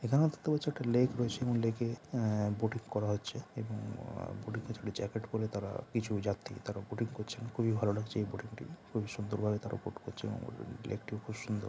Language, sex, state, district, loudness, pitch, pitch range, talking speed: Bengali, male, West Bengal, Jhargram, -37 LUFS, 110 Hz, 105-120 Hz, 215 wpm